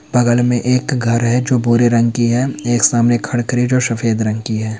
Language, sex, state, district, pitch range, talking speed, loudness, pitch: Hindi, male, Chhattisgarh, Bastar, 115-125 Hz, 215 wpm, -15 LUFS, 120 Hz